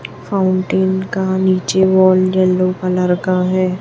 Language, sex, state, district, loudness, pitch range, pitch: Hindi, female, Chhattisgarh, Raipur, -15 LUFS, 185-190 Hz, 185 Hz